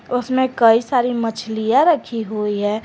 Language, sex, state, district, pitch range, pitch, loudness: Hindi, female, Jharkhand, Garhwa, 220-245 Hz, 225 Hz, -18 LUFS